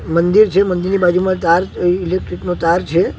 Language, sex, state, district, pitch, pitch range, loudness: Gujarati, male, Gujarat, Gandhinagar, 180 Hz, 175-185 Hz, -15 LUFS